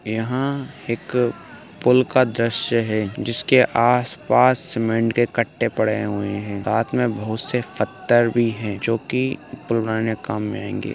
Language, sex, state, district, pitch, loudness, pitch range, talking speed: Hindi, male, Uttar Pradesh, Ghazipur, 115 Hz, -21 LUFS, 110-125 Hz, 160 wpm